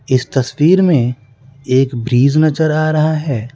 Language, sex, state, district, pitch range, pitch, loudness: Hindi, male, Bihar, West Champaran, 125-155 Hz, 135 Hz, -14 LUFS